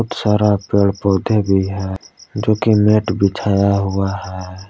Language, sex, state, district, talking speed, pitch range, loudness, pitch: Hindi, male, Jharkhand, Palamu, 140 wpm, 95-105 Hz, -16 LUFS, 100 Hz